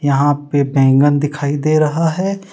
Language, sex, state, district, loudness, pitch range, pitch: Hindi, male, Jharkhand, Deoghar, -15 LUFS, 140-155 Hz, 145 Hz